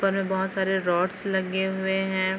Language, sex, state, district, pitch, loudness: Hindi, female, Chhattisgarh, Bilaspur, 190 Hz, -26 LUFS